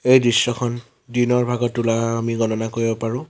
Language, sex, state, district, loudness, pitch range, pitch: Assamese, male, Assam, Sonitpur, -20 LUFS, 115-120 Hz, 120 Hz